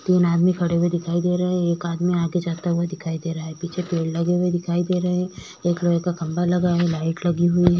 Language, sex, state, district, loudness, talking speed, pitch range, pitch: Hindi, female, Chhattisgarh, Korba, -22 LUFS, 255 wpm, 170-180 Hz, 175 Hz